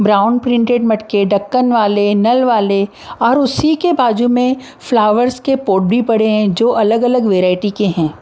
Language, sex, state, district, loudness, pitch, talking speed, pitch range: Hindi, female, Maharashtra, Mumbai Suburban, -13 LUFS, 225 Hz, 175 wpm, 205-245 Hz